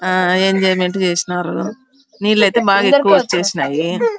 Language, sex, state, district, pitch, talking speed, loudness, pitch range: Telugu, female, Andhra Pradesh, Anantapur, 190 Hz, 115 wpm, -15 LUFS, 180-215 Hz